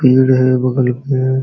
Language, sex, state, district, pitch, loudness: Hindi, male, Uttar Pradesh, Jalaun, 130 Hz, -14 LUFS